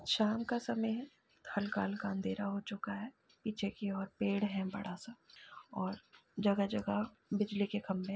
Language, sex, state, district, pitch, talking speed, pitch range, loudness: Hindi, female, Uttar Pradesh, Jalaun, 205 Hz, 155 wpm, 200-215 Hz, -38 LUFS